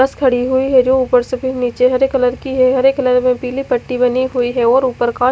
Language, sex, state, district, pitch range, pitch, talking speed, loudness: Hindi, female, Odisha, Khordha, 250-260 Hz, 255 Hz, 270 wpm, -14 LUFS